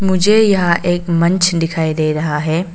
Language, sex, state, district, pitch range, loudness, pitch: Hindi, female, Arunachal Pradesh, Papum Pare, 160-185 Hz, -14 LUFS, 170 Hz